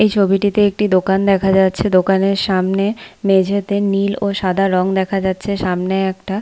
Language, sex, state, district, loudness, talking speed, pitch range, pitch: Bengali, female, West Bengal, Paschim Medinipur, -16 LUFS, 160 wpm, 190-200 Hz, 195 Hz